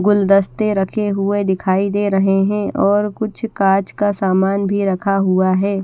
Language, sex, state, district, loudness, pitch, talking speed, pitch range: Hindi, female, Haryana, Charkhi Dadri, -16 LUFS, 200 Hz, 165 wpm, 195-205 Hz